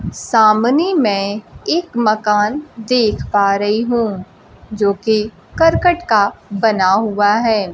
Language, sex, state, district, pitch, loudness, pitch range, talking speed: Hindi, female, Bihar, Kaimur, 215 Hz, -15 LUFS, 205-235 Hz, 115 wpm